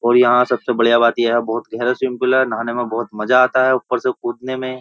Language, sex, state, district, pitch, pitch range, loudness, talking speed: Hindi, male, Uttar Pradesh, Jyotiba Phule Nagar, 125 Hz, 120-130 Hz, -17 LUFS, 285 wpm